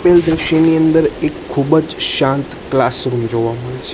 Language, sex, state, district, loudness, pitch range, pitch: Gujarati, male, Gujarat, Gandhinagar, -15 LUFS, 130-160 Hz, 150 Hz